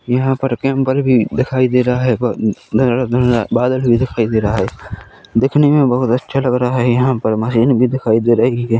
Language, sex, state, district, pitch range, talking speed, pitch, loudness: Hindi, male, Chhattisgarh, Korba, 115-130 Hz, 205 wpm, 125 Hz, -15 LUFS